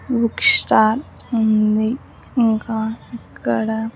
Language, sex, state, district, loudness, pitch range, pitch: Telugu, female, Andhra Pradesh, Sri Satya Sai, -18 LUFS, 215-230 Hz, 220 Hz